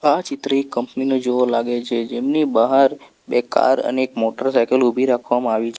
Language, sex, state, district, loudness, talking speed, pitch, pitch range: Gujarati, male, Gujarat, Valsad, -19 LUFS, 195 wpm, 125 Hz, 120-135 Hz